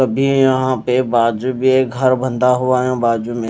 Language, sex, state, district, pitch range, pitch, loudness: Hindi, male, Odisha, Malkangiri, 120-130 Hz, 130 Hz, -16 LUFS